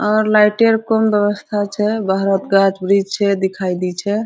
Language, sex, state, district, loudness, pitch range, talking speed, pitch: Hindi, female, Bihar, Araria, -16 LUFS, 195-215 Hz, 210 wpm, 205 Hz